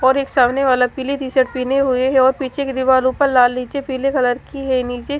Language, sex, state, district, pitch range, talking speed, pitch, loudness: Hindi, female, Haryana, Charkhi Dadri, 255-275 Hz, 265 wpm, 260 Hz, -17 LUFS